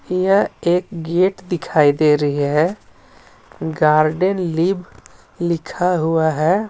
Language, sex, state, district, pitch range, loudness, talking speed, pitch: Hindi, male, Jharkhand, Ranchi, 155-185 Hz, -18 LUFS, 105 wpm, 170 Hz